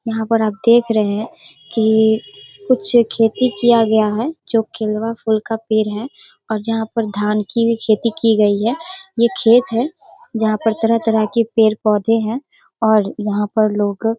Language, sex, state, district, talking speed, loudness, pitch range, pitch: Hindi, female, Bihar, Darbhanga, 180 wpm, -16 LUFS, 215-230 Hz, 225 Hz